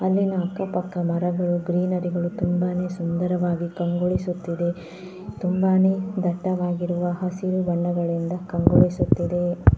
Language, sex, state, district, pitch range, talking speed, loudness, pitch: Kannada, female, Karnataka, Dharwad, 175-185 Hz, 90 wpm, -23 LUFS, 180 Hz